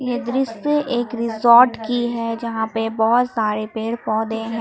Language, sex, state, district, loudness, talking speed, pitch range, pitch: Hindi, female, Jharkhand, Palamu, -19 LUFS, 170 wpm, 225-245 Hz, 230 Hz